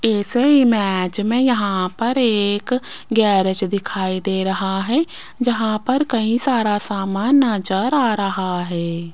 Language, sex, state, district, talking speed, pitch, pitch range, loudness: Hindi, female, Rajasthan, Jaipur, 130 wpm, 210 Hz, 190-245 Hz, -18 LUFS